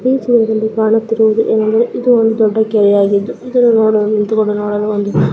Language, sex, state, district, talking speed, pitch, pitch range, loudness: Kannada, male, Karnataka, Raichur, 125 wpm, 220 Hz, 210-225 Hz, -13 LUFS